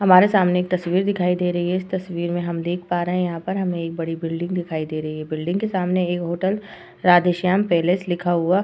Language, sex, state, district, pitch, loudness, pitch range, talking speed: Hindi, female, Uttar Pradesh, Etah, 180 Hz, -21 LUFS, 170-185 Hz, 250 wpm